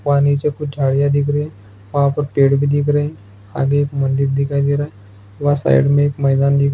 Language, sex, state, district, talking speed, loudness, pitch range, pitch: Hindi, male, Bihar, Araria, 230 wpm, -17 LUFS, 135-145 Hz, 140 Hz